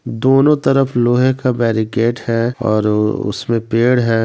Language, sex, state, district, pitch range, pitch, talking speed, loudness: Hindi, male, Bihar, Samastipur, 115-125 Hz, 120 Hz, 140 wpm, -15 LUFS